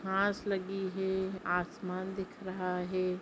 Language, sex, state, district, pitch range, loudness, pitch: Hindi, female, Jharkhand, Jamtara, 185-195 Hz, -35 LUFS, 190 Hz